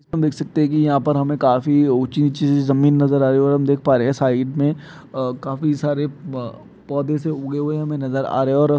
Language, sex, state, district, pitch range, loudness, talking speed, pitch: Hindi, male, Uttar Pradesh, Jyotiba Phule Nagar, 135-150 Hz, -19 LUFS, 225 wpm, 145 Hz